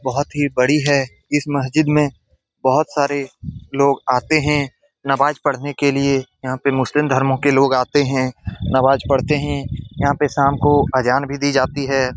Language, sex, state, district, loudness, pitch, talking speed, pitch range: Hindi, male, Bihar, Saran, -18 LUFS, 140 Hz, 175 wpm, 130-145 Hz